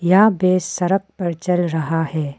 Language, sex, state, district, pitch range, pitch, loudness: Hindi, female, Arunachal Pradesh, Papum Pare, 165-185 Hz, 175 Hz, -18 LUFS